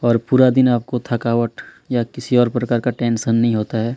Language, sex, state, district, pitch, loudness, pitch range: Hindi, male, Chhattisgarh, Kabirdham, 120 Hz, -18 LUFS, 115-125 Hz